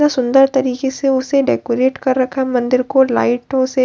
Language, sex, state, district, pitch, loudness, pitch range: Hindi, female, Bihar, Katihar, 260 Hz, -15 LUFS, 255-270 Hz